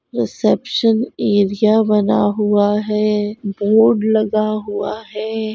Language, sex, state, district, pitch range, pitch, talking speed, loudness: Hindi, female, Goa, North and South Goa, 205-220 Hz, 215 Hz, 95 wpm, -16 LUFS